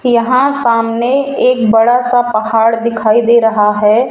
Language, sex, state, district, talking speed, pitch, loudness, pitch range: Hindi, female, Rajasthan, Jaipur, 145 wpm, 235 Hz, -11 LUFS, 225-245 Hz